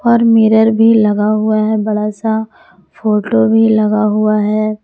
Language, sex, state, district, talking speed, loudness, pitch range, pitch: Hindi, female, Jharkhand, Palamu, 160 wpm, -12 LUFS, 215-220 Hz, 215 Hz